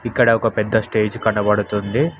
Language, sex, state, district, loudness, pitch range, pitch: Telugu, male, Telangana, Mahabubabad, -18 LUFS, 105-115 Hz, 110 Hz